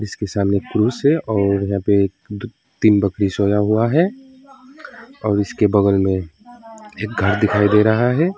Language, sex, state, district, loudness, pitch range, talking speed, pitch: Hindi, male, West Bengal, Alipurduar, -17 LUFS, 100-150 Hz, 155 wpm, 105 Hz